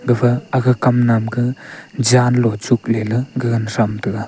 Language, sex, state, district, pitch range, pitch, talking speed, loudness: Wancho, male, Arunachal Pradesh, Longding, 115-125 Hz, 120 Hz, 170 wpm, -17 LUFS